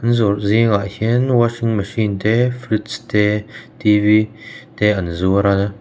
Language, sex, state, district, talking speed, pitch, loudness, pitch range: Mizo, male, Mizoram, Aizawl, 125 wpm, 105 Hz, -17 LUFS, 100-115 Hz